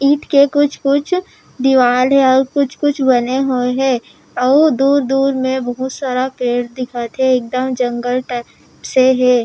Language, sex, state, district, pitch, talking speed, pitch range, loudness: Chhattisgarhi, female, Chhattisgarh, Raigarh, 260 Hz, 145 wpm, 250-275 Hz, -15 LUFS